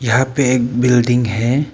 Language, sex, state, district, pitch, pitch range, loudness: Hindi, male, Arunachal Pradesh, Papum Pare, 125 Hz, 120-130 Hz, -15 LUFS